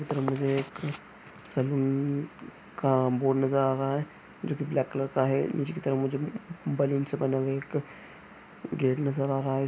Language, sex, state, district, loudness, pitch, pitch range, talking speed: Hindi, male, Chhattisgarh, Bastar, -29 LUFS, 135 Hz, 135-140 Hz, 180 wpm